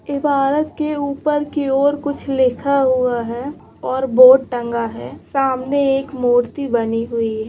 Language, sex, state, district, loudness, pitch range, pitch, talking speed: Hindi, female, West Bengal, Jalpaiguri, -17 LUFS, 245-285 Hz, 270 Hz, 150 wpm